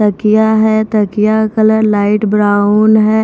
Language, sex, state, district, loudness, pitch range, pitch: Hindi, female, Maharashtra, Mumbai Suburban, -11 LUFS, 210-220 Hz, 215 Hz